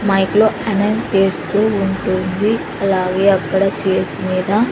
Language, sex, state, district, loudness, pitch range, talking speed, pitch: Telugu, female, Andhra Pradesh, Sri Satya Sai, -16 LUFS, 185-210 Hz, 115 wpm, 195 Hz